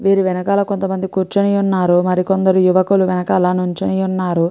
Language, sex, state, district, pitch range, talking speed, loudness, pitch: Telugu, female, Andhra Pradesh, Guntur, 180-195 Hz, 145 wpm, -16 LUFS, 190 Hz